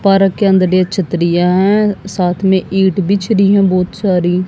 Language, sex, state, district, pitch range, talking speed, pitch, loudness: Hindi, female, Haryana, Jhajjar, 180-195 Hz, 185 wpm, 190 Hz, -13 LUFS